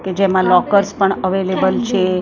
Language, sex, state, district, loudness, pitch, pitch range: Gujarati, female, Maharashtra, Mumbai Suburban, -15 LUFS, 190 Hz, 185-195 Hz